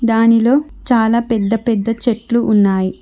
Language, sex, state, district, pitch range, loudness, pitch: Telugu, female, Telangana, Hyderabad, 215-235 Hz, -15 LUFS, 230 Hz